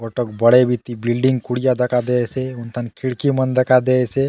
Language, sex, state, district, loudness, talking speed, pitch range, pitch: Halbi, male, Chhattisgarh, Bastar, -18 LUFS, 180 wpm, 120-130 Hz, 125 Hz